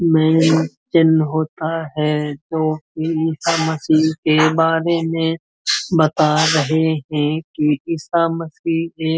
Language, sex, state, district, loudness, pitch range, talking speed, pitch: Hindi, male, Uttar Pradesh, Muzaffarnagar, -18 LUFS, 155-165 Hz, 120 wpm, 160 Hz